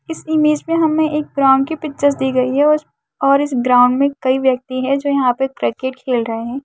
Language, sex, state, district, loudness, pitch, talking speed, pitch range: Hindi, female, Uttar Pradesh, Deoria, -16 LUFS, 275 Hz, 245 wpm, 255-300 Hz